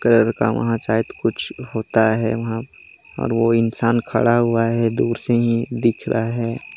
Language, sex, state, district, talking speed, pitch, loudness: Hindi, male, Chhattisgarh, Jashpur, 175 wpm, 115 Hz, -19 LUFS